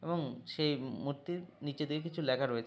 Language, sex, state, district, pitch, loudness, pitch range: Bengali, male, West Bengal, Jalpaiguri, 150 Hz, -37 LUFS, 135-165 Hz